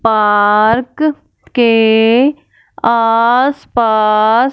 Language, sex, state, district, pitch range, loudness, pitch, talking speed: Hindi, female, Punjab, Fazilka, 220-250 Hz, -12 LUFS, 230 Hz, 55 wpm